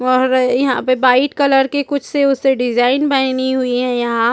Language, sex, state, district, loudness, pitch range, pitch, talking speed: Hindi, female, Chhattisgarh, Rajnandgaon, -15 LUFS, 250-275 Hz, 260 Hz, 195 wpm